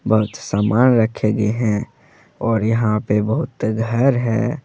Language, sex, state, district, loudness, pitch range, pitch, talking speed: Hindi, male, Jharkhand, Deoghar, -18 LUFS, 105-120 Hz, 110 Hz, 140 wpm